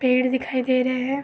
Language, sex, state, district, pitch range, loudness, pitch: Hindi, female, Uttar Pradesh, Varanasi, 255-260 Hz, -22 LUFS, 255 Hz